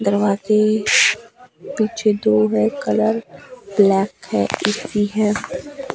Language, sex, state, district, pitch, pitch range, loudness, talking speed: Hindi, female, Himachal Pradesh, Shimla, 210 Hz, 195-225 Hz, -18 LUFS, 90 wpm